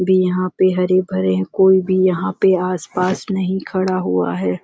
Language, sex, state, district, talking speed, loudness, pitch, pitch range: Hindi, female, Chhattisgarh, Rajnandgaon, 195 wpm, -17 LUFS, 185 Hz, 165-185 Hz